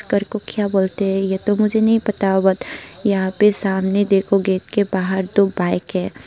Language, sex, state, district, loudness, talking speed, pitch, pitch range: Hindi, female, Tripura, Unakoti, -18 LUFS, 190 wpm, 195 Hz, 190-205 Hz